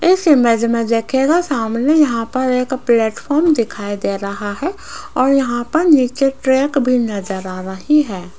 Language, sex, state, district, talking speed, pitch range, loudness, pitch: Hindi, female, Rajasthan, Jaipur, 165 wpm, 225-290 Hz, -16 LUFS, 255 Hz